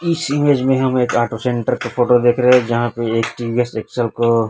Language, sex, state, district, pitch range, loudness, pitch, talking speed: Hindi, male, Chhattisgarh, Raipur, 120-130 Hz, -17 LUFS, 120 Hz, 225 wpm